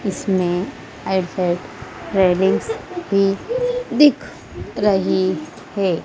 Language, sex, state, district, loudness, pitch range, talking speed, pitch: Hindi, female, Madhya Pradesh, Dhar, -19 LUFS, 185-265 Hz, 60 wpm, 195 Hz